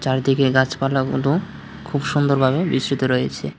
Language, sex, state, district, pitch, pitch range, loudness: Bengali, male, Tripura, West Tripura, 135 Hz, 130-145 Hz, -19 LUFS